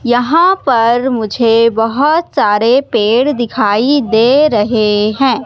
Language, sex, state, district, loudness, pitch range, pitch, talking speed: Hindi, female, Madhya Pradesh, Katni, -11 LUFS, 225-275 Hz, 240 Hz, 110 wpm